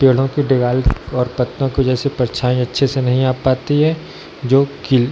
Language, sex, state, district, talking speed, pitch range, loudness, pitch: Hindi, male, Bihar, Darbhanga, 200 wpm, 125-135 Hz, -17 LUFS, 130 Hz